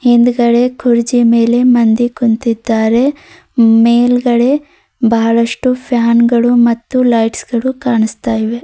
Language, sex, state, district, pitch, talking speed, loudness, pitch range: Kannada, female, Karnataka, Bidar, 235 Hz, 90 wpm, -12 LUFS, 230-245 Hz